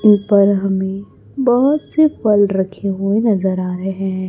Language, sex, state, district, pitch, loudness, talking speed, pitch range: Hindi, male, Chhattisgarh, Raipur, 200 Hz, -16 LUFS, 155 wpm, 190-215 Hz